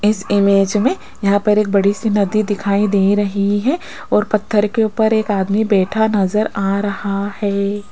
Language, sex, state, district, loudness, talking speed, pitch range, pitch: Hindi, female, Rajasthan, Jaipur, -16 LUFS, 180 wpm, 200-215 Hz, 205 Hz